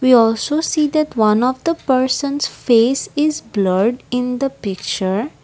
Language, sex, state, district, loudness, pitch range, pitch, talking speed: English, female, Assam, Kamrup Metropolitan, -17 LUFS, 220-285 Hz, 250 Hz, 155 wpm